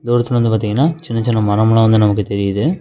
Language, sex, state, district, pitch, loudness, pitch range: Tamil, male, Tamil Nadu, Namakkal, 115 Hz, -15 LUFS, 105-120 Hz